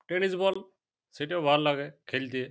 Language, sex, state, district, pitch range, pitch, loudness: Bengali, male, West Bengal, Purulia, 140-190 Hz, 145 Hz, -29 LUFS